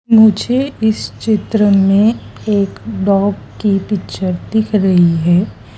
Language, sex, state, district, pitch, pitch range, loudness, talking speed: Hindi, female, Madhya Pradesh, Dhar, 205 Hz, 190-220 Hz, -14 LUFS, 115 wpm